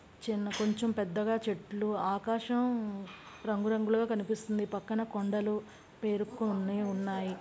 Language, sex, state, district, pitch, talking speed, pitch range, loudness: Telugu, female, Andhra Pradesh, Visakhapatnam, 210 Hz, 105 wpm, 205-220 Hz, -33 LUFS